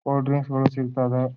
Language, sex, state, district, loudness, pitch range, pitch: Kannada, male, Karnataka, Bijapur, -23 LUFS, 130-140 Hz, 135 Hz